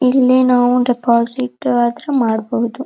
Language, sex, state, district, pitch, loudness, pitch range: Kannada, female, Karnataka, Dharwad, 245 Hz, -15 LUFS, 235-255 Hz